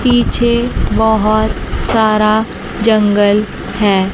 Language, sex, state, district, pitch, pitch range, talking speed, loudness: Hindi, female, Chandigarh, Chandigarh, 215 Hz, 210-225 Hz, 75 wpm, -13 LUFS